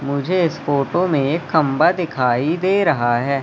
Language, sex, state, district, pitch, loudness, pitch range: Hindi, male, Madhya Pradesh, Katni, 150 Hz, -18 LUFS, 140-175 Hz